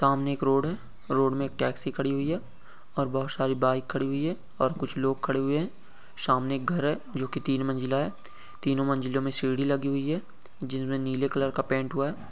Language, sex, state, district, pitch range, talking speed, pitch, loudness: Hindi, male, Bihar, Saran, 135-145 Hz, 230 wpm, 135 Hz, -28 LUFS